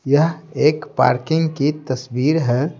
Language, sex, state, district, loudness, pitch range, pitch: Hindi, male, Bihar, Patna, -19 LUFS, 130-160 Hz, 150 Hz